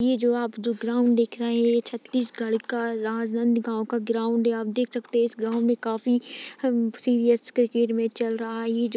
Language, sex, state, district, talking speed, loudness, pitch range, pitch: Hindi, female, Chhattisgarh, Rajnandgaon, 220 wpm, -25 LUFS, 230-240 Hz, 235 Hz